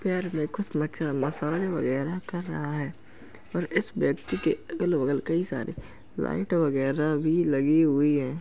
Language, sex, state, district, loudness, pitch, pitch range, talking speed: Hindi, male, Uttar Pradesh, Jalaun, -27 LUFS, 155 Hz, 140-170 Hz, 165 wpm